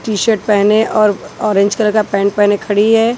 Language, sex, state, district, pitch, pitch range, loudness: Hindi, female, Chhattisgarh, Raipur, 210 Hz, 205-220 Hz, -13 LUFS